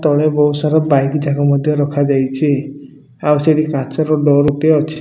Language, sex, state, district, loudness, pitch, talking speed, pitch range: Odia, male, Odisha, Malkangiri, -14 LUFS, 145 Hz, 170 wpm, 140-155 Hz